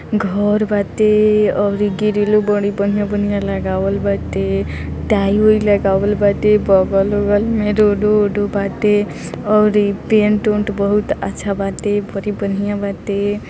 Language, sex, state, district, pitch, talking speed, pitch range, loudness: Hindi, female, Bihar, East Champaran, 205 Hz, 120 wpm, 200-210 Hz, -16 LUFS